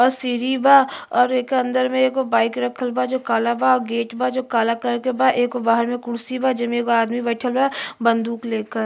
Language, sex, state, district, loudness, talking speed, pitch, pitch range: Bhojpuri, female, Uttar Pradesh, Ghazipur, -20 LUFS, 225 wpm, 245 Hz, 235-255 Hz